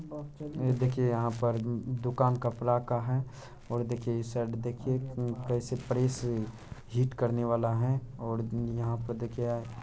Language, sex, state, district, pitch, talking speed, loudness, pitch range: Hindi, male, Bihar, Araria, 120 Hz, 150 wpm, -32 LUFS, 115-130 Hz